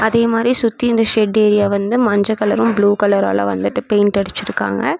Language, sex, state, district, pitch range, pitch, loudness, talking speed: Tamil, female, Tamil Nadu, Namakkal, 200-230 Hz, 210 Hz, -15 LUFS, 180 wpm